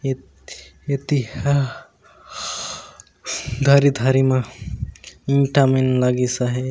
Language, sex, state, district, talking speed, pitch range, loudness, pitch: Chhattisgarhi, male, Chhattisgarh, Raigarh, 100 wpm, 125-140 Hz, -20 LUFS, 130 Hz